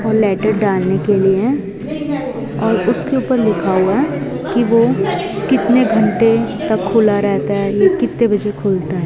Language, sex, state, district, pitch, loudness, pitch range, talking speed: Hindi, female, Himachal Pradesh, Shimla, 215 Hz, -15 LUFS, 195-235 Hz, 160 wpm